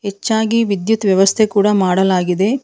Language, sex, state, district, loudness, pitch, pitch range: Kannada, female, Karnataka, Bangalore, -15 LUFS, 200 Hz, 190-220 Hz